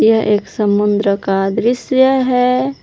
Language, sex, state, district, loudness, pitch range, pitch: Hindi, female, Jharkhand, Palamu, -14 LUFS, 205-255 Hz, 220 Hz